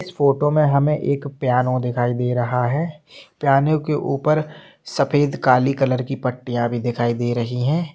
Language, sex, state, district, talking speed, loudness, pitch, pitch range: Hindi, male, Jharkhand, Jamtara, 175 wpm, -20 LUFS, 135 Hz, 125-150 Hz